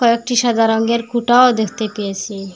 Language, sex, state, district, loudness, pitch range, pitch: Bengali, female, Assam, Hailakandi, -16 LUFS, 210-240 Hz, 230 Hz